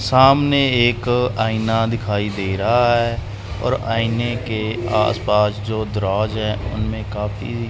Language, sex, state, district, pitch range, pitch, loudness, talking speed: Hindi, male, Punjab, Kapurthala, 105-120 Hz, 110 Hz, -19 LUFS, 125 wpm